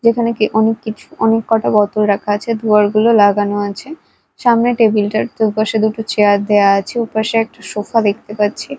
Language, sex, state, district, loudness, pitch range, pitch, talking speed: Bengali, female, Odisha, Malkangiri, -15 LUFS, 205-225 Hz, 220 Hz, 165 wpm